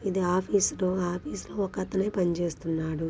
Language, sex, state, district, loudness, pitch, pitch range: Telugu, female, Andhra Pradesh, Guntur, -28 LUFS, 185 Hz, 170-195 Hz